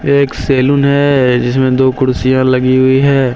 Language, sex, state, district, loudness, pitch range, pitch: Hindi, male, Jharkhand, Deoghar, -11 LUFS, 130-140 Hz, 130 Hz